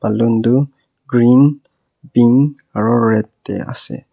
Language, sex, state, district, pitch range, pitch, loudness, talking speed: Nagamese, male, Nagaland, Kohima, 115-135 Hz, 120 Hz, -15 LUFS, 115 wpm